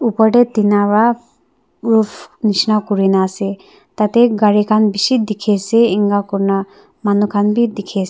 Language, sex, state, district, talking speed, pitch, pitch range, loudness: Nagamese, female, Nagaland, Dimapur, 170 wpm, 210 Hz, 205-225 Hz, -15 LUFS